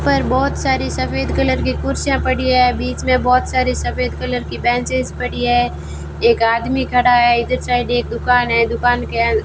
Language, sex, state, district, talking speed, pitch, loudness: Hindi, female, Rajasthan, Bikaner, 195 wpm, 230 Hz, -16 LUFS